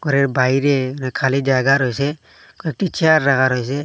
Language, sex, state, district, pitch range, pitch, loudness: Bengali, male, Assam, Hailakandi, 130-145 Hz, 135 Hz, -17 LUFS